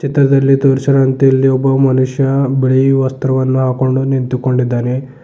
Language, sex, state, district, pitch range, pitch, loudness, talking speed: Kannada, male, Karnataka, Bidar, 130-135 Hz, 135 Hz, -13 LUFS, 105 wpm